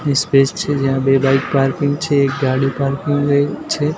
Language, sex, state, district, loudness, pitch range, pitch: Gujarati, male, Gujarat, Gandhinagar, -16 LUFS, 135-145 Hz, 140 Hz